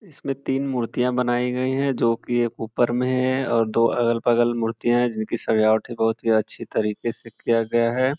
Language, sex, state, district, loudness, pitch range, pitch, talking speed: Hindi, male, Uttar Pradesh, Varanasi, -22 LUFS, 115-125 Hz, 120 Hz, 205 wpm